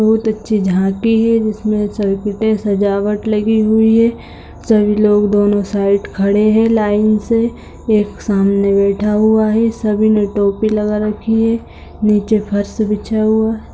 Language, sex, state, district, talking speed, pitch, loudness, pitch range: Hindi, female, Bihar, Lakhisarai, 145 wpm, 215 Hz, -14 LUFS, 205-220 Hz